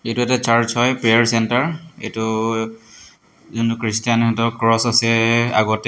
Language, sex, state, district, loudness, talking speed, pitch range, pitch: Assamese, male, Assam, Hailakandi, -17 LUFS, 155 wpm, 115-120 Hz, 115 Hz